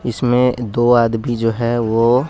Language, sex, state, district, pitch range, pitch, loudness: Hindi, male, Bihar, West Champaran, 115-125 Hz, 120 Hz, -16 LUFS